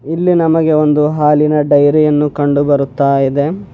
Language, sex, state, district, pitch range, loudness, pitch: Kannada, male, Karnataka, Bidar, 145-155 Hz, -12 LUFS, 150 Hz